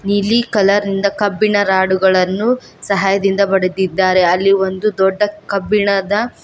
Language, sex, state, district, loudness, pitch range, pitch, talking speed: Kannada, female, Karnataka, Koppal, -15 LUFS, 190-205 Hz, 200 Hz, 120 wpm